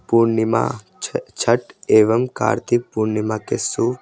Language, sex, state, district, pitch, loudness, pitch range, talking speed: Hindi, male, Rajasthan, Jaipur, 115 Hz, -19 LUFS, 110-120 Hz, 120 wpm